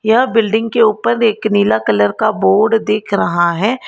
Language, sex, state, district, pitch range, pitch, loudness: Hindi, female, Karnataka, Bangalore, 190-230 Hz, 215 Hz, -14 LUFS